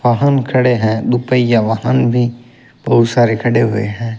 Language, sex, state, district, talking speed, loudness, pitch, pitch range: Hindi, male, Rajasthan, Bikaner, 155 wpm, -14 LUFS, 120 Hz, 115-125 Hz